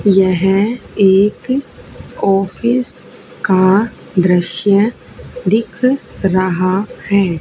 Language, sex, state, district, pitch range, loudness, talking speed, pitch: Hindi, female, Haryana, Charkhi Dadri, 185-225 Hz, -14 LUFS, 65 wpm, 195 Hz